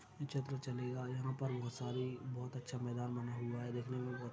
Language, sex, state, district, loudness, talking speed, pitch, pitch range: Hindi, male, Maharashtra, Aurangabad, -43 LUFS, 205 wpm, 125 Hz, 120-130 Hz